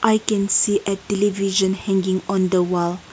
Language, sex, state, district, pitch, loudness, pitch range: English, female, Nagaland, Kohima, 195 Hz, -20 LUFS, 185-205 Hz